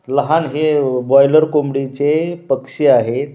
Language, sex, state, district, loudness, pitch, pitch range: Marathi, male, Maharashtra, Washim, -15 LUFS, 145 Hz, 135-155 Hz